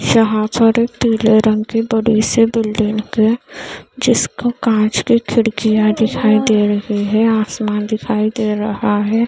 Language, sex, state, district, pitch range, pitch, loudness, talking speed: Hindi, female, Maharashtra, Mumbai Suburban, 215-225 Hz, 220 Hz, -15 LUFS, 150 wpm